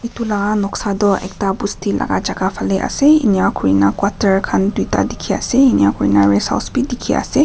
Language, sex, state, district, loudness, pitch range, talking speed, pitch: Nagamese, female, Nagaland, Kohima, -16 LUFS, 185-235 Hz, 155 wpm, 200 Hz